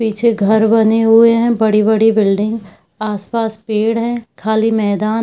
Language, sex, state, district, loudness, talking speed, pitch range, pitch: Hindi, female, Bihar, Purnia, -14 LUFS, 150 wpm, 215-225 Hz, 220 Hz